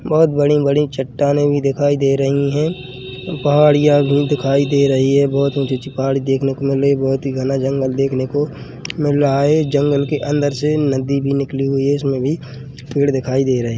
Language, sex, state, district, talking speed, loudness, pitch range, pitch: Hindi, male, Chhattisgarh, Rajnandgaon, 210 wpm, -16 LUFS, 135-145 Hz, 140 Hz